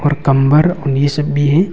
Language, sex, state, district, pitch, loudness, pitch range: Hindi, male, Arunachal Pradesh, Longding, 145 Hz, -13 LUFS, 140-155 Hz